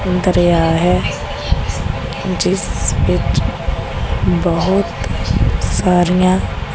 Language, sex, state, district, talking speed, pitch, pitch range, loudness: Punjabi, female, Punjab, Kapurthala, 55 wpm, 180 Hz, 170-185 Hz, -16 LUFS